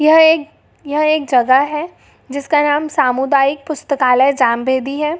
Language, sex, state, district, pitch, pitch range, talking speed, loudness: Hindi, female, Jharkhand, Jamtara, 285 Hz, 265-305 Hz, 125 wpm, -14 LUFS